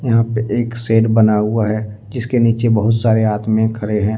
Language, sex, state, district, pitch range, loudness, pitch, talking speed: Hindi, male, Jharkhand, Deoghar, 110-115 Hz, -16 LUFS, 110 Hz, 215 wpm